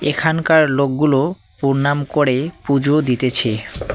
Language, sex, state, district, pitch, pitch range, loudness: Bengali, male, West Bengal, Cooch Behar, 140 Hz, 135-155 Hz, -17 LUFS